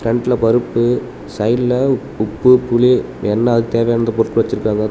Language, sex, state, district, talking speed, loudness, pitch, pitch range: Tamil, male, Tamil Nadu, Namakkal, 120 wpm, -15 LUFS, 115 Hz, 115-125 Hz